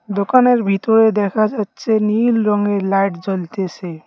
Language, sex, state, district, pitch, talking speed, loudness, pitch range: Bengali, male, West Bengal, Cooch Behar, 205 Hz, 120 wpm, -16 LUFS, 195-220 Hz